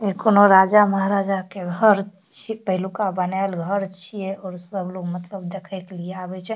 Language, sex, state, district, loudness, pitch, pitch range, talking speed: Maithili, female, Bihar, Darbhanga, -21 LUFS, 190 Hz, 185-200 Hz, 175 wpm